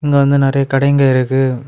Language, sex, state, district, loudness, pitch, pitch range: Tamil, male, Tamil Nadu, Kanyakumari, -13 LUFS, 135 Hz, 135-140 Hz